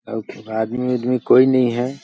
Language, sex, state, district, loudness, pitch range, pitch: Hindi, male, Chhattisgarh, Balrampur, -18 LUFS, 120-125 Hz, 125 Hz